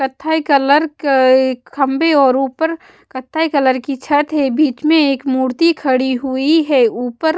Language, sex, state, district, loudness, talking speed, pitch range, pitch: Hindi, female, Bihar, West Champaran, -15 LUFS, 160 wpm, 260-315 Hz, 280 Hz